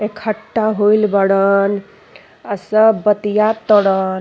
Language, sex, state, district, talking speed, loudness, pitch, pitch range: Bhojpuri, female, Uttar Pradesh, Ghazipur, 100 wpm, -15 LUFS, 210 Hz, 200-215 Hz